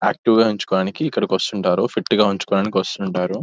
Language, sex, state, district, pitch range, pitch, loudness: Telugu, male, Telangana, Nalgonda, 95-105 Hz, 95 Hz, -19 LUFS